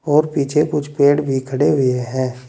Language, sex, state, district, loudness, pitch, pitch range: Hindi, male, Uttar Pradesh, Saharanpur, -17 LUFS, 140 Hz, 130-150 Hz